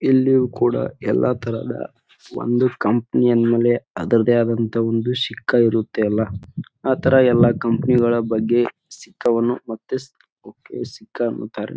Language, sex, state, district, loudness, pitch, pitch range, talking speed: Kannada, male, Karnataka, Bijapur, -19 LUFS, 120 Hz, 115-125 Hz, 120 wpm